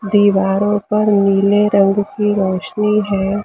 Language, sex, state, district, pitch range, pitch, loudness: Hindi, female, Maharashtra, Mumbai Suburban, 195-210 Hz, 205 Hz, -15 LUFS